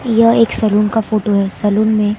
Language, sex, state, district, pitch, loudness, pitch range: Hindi, female, Maharashtra, Mumbai Suburban, 215 Hz, -14 LUFS, 205-225 Hz